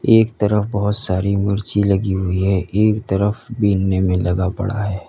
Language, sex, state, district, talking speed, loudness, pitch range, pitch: Hindi, male, Uttar Pradesh, Lalitpur, 175 wpm, -18 LUFS, 95-105 Hz, 100 Hz